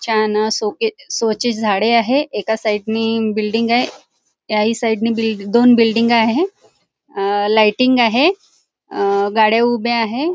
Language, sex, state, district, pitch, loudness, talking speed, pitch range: Marathi, female, Maharashtra, Nagpur, 225 Hz, -16 LUFS, 135 wpm, 215-235 Hz